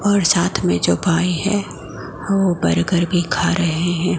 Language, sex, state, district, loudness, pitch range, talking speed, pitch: Hindi, male, Gujarat, Gandhinagar, -18 LUFS, 170-190 Hz, 170 wpm, 175 Hz